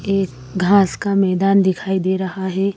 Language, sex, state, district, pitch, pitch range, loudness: Hindi, female, Madhya Pradesh, Bhopal, 190 Hz, 185-195 Hz, -18 LUFS